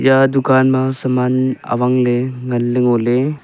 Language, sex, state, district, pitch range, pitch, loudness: Wancho, male, Arunachal Pradesh, Longding, 125-130 Hz, 130 Hz, -15 LUFS